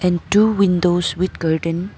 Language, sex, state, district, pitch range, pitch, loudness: English, female, Arunachal Pradesh, Papum Pare, 170-195 Hz, 180 Hz, -17 LUFS